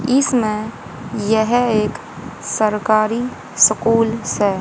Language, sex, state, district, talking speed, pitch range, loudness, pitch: Hindi, female, Haryana, Jhajjar, 90 wpm, 215-230 Hz, -17 LUFS, 220 Hz